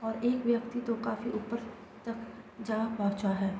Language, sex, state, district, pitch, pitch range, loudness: Hindi, female, Bihar, East Champaran, 225 Hz, 215-235 Hz, -33 LUFS